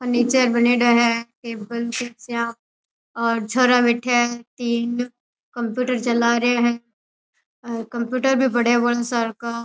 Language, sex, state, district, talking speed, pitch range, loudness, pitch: Rajasthani, female, Rajasthan, Churu, 135 wpm, 235-245 Hz, -20 LUFS, 240 Hz